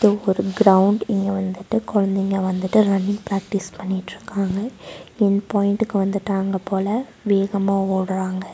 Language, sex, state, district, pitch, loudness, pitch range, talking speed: Tamil, female, Tamil Nadu, Nilgiris, 195 Hz, -21 LUFS, 190-205 Hz, 110 wpm